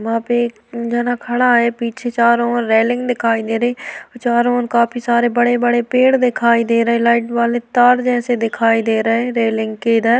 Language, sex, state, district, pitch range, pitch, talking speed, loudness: Hindi, female, Uttar Pradesh, Varanasi, 230-245 Hz, 235 Hz, 195 wpm, -16 LUFS